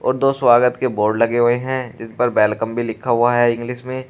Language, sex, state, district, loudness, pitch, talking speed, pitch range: Hindi, male, Uttar Pradesh, Shamli, -17 LUFS, 120 Hz, 250 wpm, 115-130 Hz